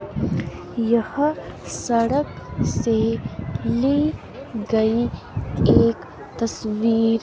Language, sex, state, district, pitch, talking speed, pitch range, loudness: Hindi, female, Himachal Pradesh, Shimla, 230 Hz, 60 wpm, 225-255 Hz, -22 LUFS